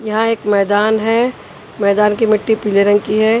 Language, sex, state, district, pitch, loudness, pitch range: Hindi, female, Haryana, Charkhi Dadri, 215 Hz, -14 LUFS, 205-225 Hz